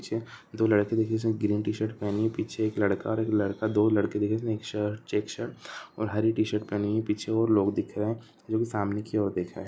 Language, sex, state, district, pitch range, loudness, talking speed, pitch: Hindi, male, Uttar Pradesh, Deoria, 105-110 Hz, -28 LUFS, 285 wpm, 110 Hz